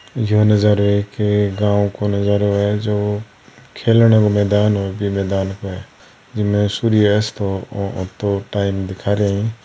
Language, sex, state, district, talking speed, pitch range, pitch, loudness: Hindi, male, Rajasthan, Churu, 155 wpm, 100-105 Hz, 105 Hz, -17 LUFS